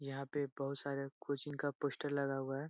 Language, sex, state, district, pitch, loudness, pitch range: Hindi, male, Bihar, Jahanabad, 140 Hz, -41 LUFS, 135-145 Hz